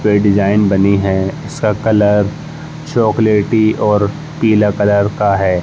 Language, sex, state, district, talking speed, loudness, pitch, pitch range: Hindi, male, Uttar Pradesh, Jalaun, 130 wpm, -13 LUFS, 105 Hz, 100-110 Hz